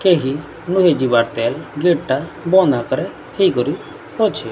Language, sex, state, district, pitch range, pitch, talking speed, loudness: Odia, female, Odisha, Sambalpur, 130-185 Hz, 165 Hz, 120 wpm, -17 LUFS